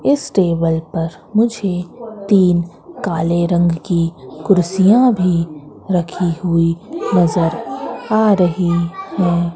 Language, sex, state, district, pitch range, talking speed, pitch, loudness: Hindi, female, Madhya Pradesh, Katni, 170-200 Hz, 100 wpm, 175 Hz, -16 LUFS